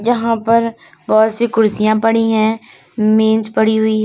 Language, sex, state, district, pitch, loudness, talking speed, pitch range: Hindi, female, Uttar Pradesh, Lalitpur, 220 Hz, -14 LUFS, 165 wpm, 220-230 Hz